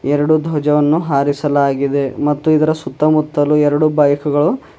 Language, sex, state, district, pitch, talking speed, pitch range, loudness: Kannada, male, Karnataka, Bidar, 145 Hz, 125 wpm, 140-155 Hz, -15 LUFS